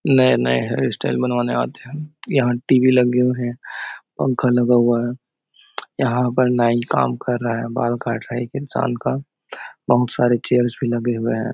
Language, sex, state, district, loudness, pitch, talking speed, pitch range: Hindi, male, Chhattisgarh, Raigarh, -19 LUFS, 120 Hz, 185 wpm, 120-130 Hz